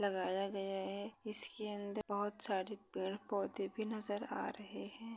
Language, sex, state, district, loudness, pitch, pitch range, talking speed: Hindi, female, Maharashtra, Pune, -42 LUFS, 205 Hz, 195-215 Hz, 160 wpm